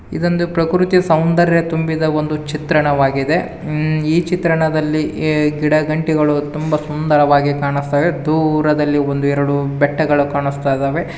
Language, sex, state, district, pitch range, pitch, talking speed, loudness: Kannada, male, Karnataka, Bijapur, 145-160 Hz, 155 Hz, 105 wpm, -16 LUFS